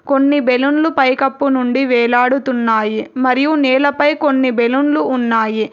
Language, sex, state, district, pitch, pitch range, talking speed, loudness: Telugu, female, Telangana, Hyderabad, 260 Hz, 245-280 Hz, 105 wpm, -14 LUFS